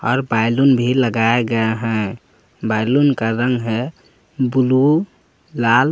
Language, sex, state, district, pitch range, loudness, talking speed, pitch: Hindi, male, Jharkhand, Palamu, 115-130 Hz, -17 LUFS, 120 wpm, 120 Hz